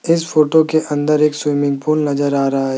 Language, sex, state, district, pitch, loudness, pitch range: Hindi, male, Rajasthan, Jaipur, 150 Hz, -16 LUFS, 145-155 Hz